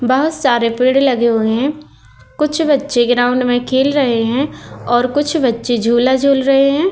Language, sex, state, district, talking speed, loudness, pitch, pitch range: Hindi, female, Uttar Pradesh, Muzaffarnagar, 175 wpm, -14 LUFS, 260 Hz, 240-280 Hz